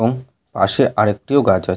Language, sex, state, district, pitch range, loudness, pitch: Bengali, male, West Bengal, Purulia, 105-135 Hz, -17 LUFS, 115 Hz